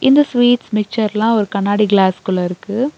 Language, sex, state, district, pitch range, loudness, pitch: Tamil, female, Tamil Nadu, Nilgiris, 200-245 Hz, -15 LUFS, 210 Hz